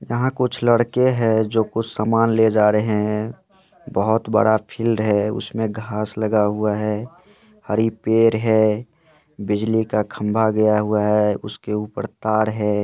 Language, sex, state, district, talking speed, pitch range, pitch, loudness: Hindi, male, Jharkhand, Jamtara, 155 wpm, 105-115 Hz, 110 Hz, -20 LUFS